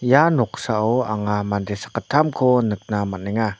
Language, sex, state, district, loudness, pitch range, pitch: Garo, male, Meghalaya, North Garo Hills, -21 LUFS, 105-125 Hz, 110 Hz